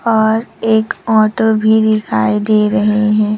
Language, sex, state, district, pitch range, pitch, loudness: Hindi, female, Chhattisgarh, Raipur, 210-220 Hz, 215 Hz, -13 LUFS